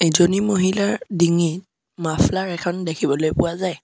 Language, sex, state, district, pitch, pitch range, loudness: Assamese, male, Assam, Sonitpur, 175 Hz, 165-190 Hz, -20 LUFS